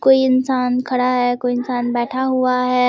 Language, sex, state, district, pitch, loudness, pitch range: Hindi, female, Bihar, Muzaffarpur, 250 Hz, -18 LUFS, 245-255 Hz